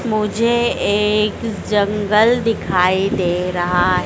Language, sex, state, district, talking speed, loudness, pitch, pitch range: Hindi, female, Madhya Pradesh, Dhar, 90 wpm, -17 LUFS, 210 Hz, 185-215 Hz